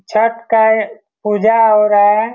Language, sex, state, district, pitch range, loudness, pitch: Hindi, male, Bihar, Saran, 210-225 Hz, -12 LUFS, 220 Hz